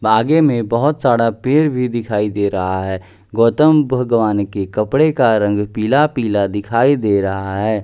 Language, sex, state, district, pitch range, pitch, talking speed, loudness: Hindi, male, Bihar, West Champaran, 100-125 Hz, 110 Hz, 160 wpm, -16 LUFS